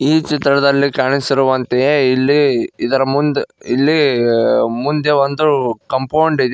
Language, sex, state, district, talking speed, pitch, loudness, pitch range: Kannada, male, Karnataka, Koppal, 100 wpm, 140 Hz, -15 LUFS, 130-150 Hz